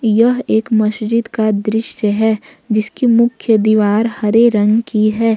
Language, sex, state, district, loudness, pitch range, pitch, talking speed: Hindi, female, Jharkhand, Ranchi, -14 LUFS, 215-230 Hz, 220 Hz, 145 wpm